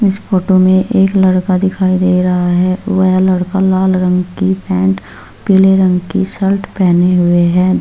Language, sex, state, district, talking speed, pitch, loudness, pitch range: Hindi, female, Bihar, Samastipur, 175 wpm, 185 Hz, -12 LUFS, 180-190 Hz